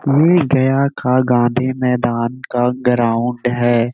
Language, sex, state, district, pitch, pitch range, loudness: Hindi, male, Bihar, Gaya, 125 Hz, 120-130 Hz, -16 LUFS